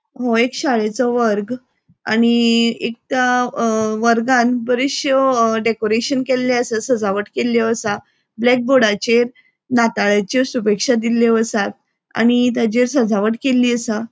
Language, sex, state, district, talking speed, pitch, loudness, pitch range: Konkani, female, Goa, North and South Goa, 110 wpm, 235 Hz, -17 LUFS, 225-250 Hz